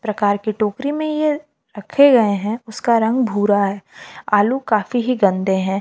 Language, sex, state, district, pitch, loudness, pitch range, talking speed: Hindi, female, Jharkhand, Palamu, 215 Hz, -18 LUFS, 205-255 Hz, 175 wpm